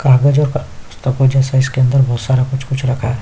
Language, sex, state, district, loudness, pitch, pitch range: Hindi, male, Chhattisgarh, Kabirdham, -15 LUFS, 130 Hz, 130-135 Hz